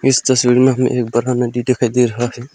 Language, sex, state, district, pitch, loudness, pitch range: Hindi, male, Arunachal Pradesh, Lower Dibang Valley, 125 Hz, -15 LUFS, 120-130 Hz